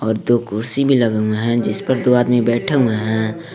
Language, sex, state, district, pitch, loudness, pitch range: Hindi, male, Jharkhand, Garhwa, 120 Hz, -17 LUFS, 110-125 Hz